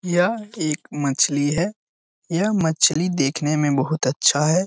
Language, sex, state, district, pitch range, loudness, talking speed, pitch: Hindi, male, Bihar, Jamui, 145-180 Hz, -20 LUFS, 140 wpm, 155 Hz